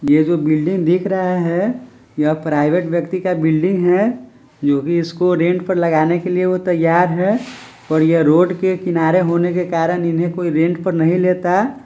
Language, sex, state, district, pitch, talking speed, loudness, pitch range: Hindi, male, Bihar, Sitamarhi, 175 Hz, 180 wpm, -16 LUFS, 160-185 Hz